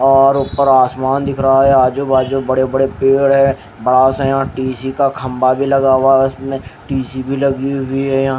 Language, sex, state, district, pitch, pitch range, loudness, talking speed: Hindi, male, Haryana, Rohtak, 135 Hz, 130-135 Hz, -14 LUFS, 205 wpm